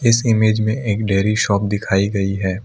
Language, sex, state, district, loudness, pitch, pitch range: Hindi, male, Assam, Kamrup Metropolitan, -17 LUFS, 105 Hz, 100-110 Hz